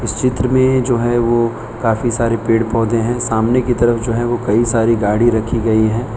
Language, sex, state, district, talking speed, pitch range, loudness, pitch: Hindi, male, Gujarat, Valsad, 225 wpm, 115-120 Hz, -15 LUFS, 115 Hz